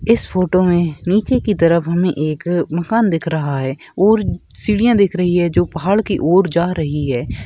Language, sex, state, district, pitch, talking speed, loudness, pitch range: Hindi, male, Bihar, Gaya, 175 Hz, 195 wpm, -16 LUFS, 160-200 Hz